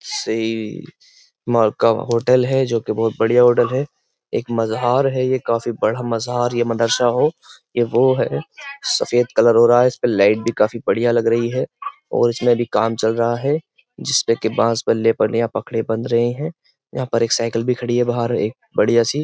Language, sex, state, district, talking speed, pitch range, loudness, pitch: Hindi, male, Uttar Pradesh, Jyotiba Phule Nagar, 205 wpm, 115-125 Hz, -18 LUFS, 120 Hz